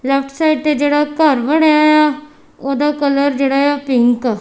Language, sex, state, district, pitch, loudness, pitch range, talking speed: Punjabi, female, Punjab, Kapurthala, 290 Hz, -14 LUFS, 275-300 Hz, 150 wpm